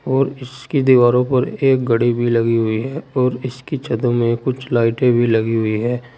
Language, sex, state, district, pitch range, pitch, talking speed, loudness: Hindi, male, Uttar Pradesh, Saharanpur, 115-130 Hz, 125 Hz, 195 wpm, -17 LUFS